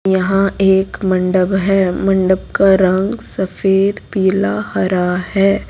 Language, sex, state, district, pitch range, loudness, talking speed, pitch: Hindi, female, Gujarat, Valsad, 185-195 Hz, -15 LUFS, 115 wpm, 190 Hz